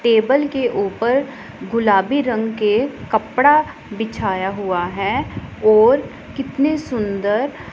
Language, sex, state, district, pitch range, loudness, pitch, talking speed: Hindi, female, Punjab, Pathankot, 205-280 Hz, -18 LUFS, 230 Hz, 100 wpm